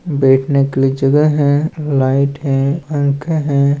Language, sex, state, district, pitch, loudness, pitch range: Chhattisgarhi, male, Chhattisgarh, Balrampur, 140 Hz, -15 LUFS, 135-145 Hz